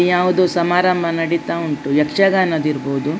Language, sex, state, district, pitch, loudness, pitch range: Kannada, female, Karnataka, Dakshina Kannada, 170 Hz, -17 LUFS, 150-180 Hz